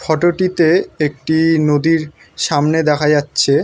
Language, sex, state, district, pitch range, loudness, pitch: Bengali, male, West Bengal, North 24 Parganas, 150-165 Hz, -15 LUFS, 155 Hz